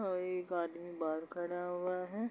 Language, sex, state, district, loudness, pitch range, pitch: Hindi, male, Bihar, Gopalganj, -39 LUFS, 170-180 Hz, 180 Hz